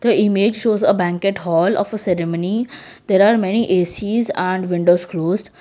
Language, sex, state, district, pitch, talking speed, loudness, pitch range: English, female, Gujarat, Valsad, 195 Hz, 170 wpm, -17 LUFS, 180-215 Hz